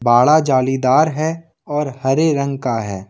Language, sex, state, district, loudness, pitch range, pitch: Hindi, male, Jharkhand, Ranchi, -17 LUFS, 125-155 Hz, 135 Hz